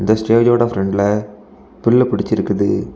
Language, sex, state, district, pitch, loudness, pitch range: Tamil, male, Tamil Nadu, Kanyakumari, 110 Hz, -16 LUFS, 105-120 Hz